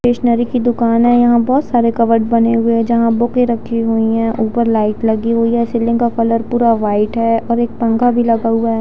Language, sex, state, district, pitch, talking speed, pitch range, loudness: Hindi, female, Jharkhand, Jamtara, 230 Hz, 230 wpm, 230-235 Hz, -14 LUFS